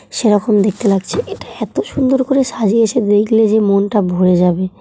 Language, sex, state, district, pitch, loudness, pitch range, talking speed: Bengali, female, West Bengal, Jhargram, 210 Hz, -14 LUFS, 200-235 Hz, 160 wpm